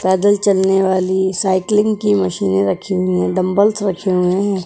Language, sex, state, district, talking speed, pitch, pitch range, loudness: Hindi, female, Uttar Pradesh, Budaun, 165 wpm, 190 Hz, 180-200 Hz, -16 LUFS